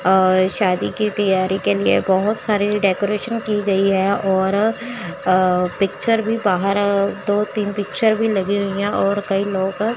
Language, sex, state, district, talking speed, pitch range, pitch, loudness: Hindi, female, Chandigarh, Chandigarh, 175 wpm, 190-210 Hz, 200 Hz, -18 LUFS